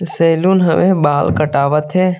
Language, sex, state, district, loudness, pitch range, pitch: Chhattisgarhi, male, Chhattisgarh, Sarguja, -13 LUFS, 150-185 Hz, 165 Hz